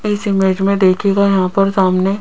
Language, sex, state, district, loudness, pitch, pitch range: Hindi, female, Rajasthan, Jaipur, -14 LUFS, 195 Hz, 190-200 Hz